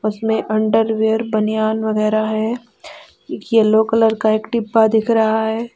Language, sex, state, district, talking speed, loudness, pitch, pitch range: Hindi, female, Uttar Pradesh, Lalitpur, 135 wpm, -17 LUFS, 220 Hz, 215-225 Hz